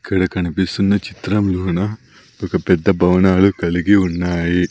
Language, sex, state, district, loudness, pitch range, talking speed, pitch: Telugu, male, Andhra Pradesh, Sri Satya Sai, -17 LUFS, 90-100 Hz, 100 wpm, 95 Hz